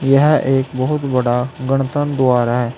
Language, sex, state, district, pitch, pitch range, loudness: Hindi, male, Uttar Pradesh, Saharanpur, 135 Hz, 125-140 Hz, -16 LUFS